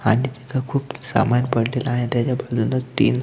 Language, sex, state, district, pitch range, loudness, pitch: Marathi, male, Maharashtra, Solapur, 120-130 Hz, -21 LUFS, 125 Hz